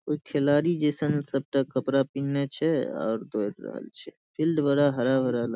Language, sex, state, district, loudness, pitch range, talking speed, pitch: Maithili, male, Bihar, Saharsa, -26 LUFS, 130-150 Hz, 185 wpm, 140 Hz